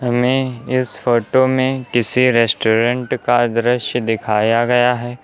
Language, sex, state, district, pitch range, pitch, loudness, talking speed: Hindi, male, Uttar Pradesh, Lucknow, 115-125 Hz, 120 Hz, -16 LUFS, 125 wpm